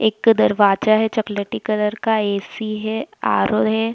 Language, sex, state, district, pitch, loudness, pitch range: Hindi, female, Bihar, Purnia, 215 Hz, -19 LUFS, 210-220 Hz